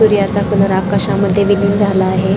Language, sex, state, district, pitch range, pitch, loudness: Marathi, female, Maharashtra, Mumbai Suburban, 190-200 Hz, 200 Hz, -13 LUFS